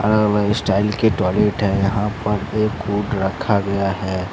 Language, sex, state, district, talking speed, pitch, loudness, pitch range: Hindi, male, Jharkhand, Deoghar, 165 wpm, 105 Hz, -19 LUFS, 100-105 Hz